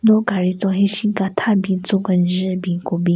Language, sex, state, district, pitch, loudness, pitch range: Rengma, female, Nagaland, Kohima, 190 Hz, -18 LUFS, 185-200 Hz